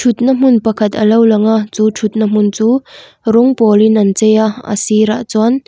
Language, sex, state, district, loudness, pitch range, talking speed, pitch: Mizo, female, Mizoram, Aizawl, -12 LUFS, 215-230 Hz, 220 wpm, 220 Hz